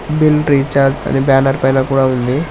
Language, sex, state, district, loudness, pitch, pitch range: Telugu, male, Telangana, Hyderabad, -13 LUFS, 135 Hz, 135-145 Hz